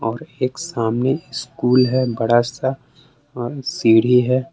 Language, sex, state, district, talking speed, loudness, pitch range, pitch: Hindi, male, Jharkhand, Palamu, 120 wpm, -19 LUFS, 120-135 Hz, 125 Hz